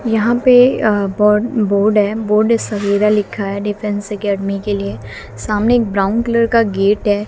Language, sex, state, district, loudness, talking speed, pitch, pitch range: Hindi, female, Haryana, Jhajjar, -15 LUFS, 165 wpm, 210 Hz, 205-225 Hz